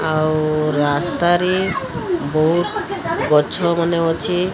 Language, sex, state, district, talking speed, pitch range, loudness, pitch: Odia, female, Odisha, Sambalpur, 95 wpm, 155-175 Hz, -18 LUFS, 165 Hz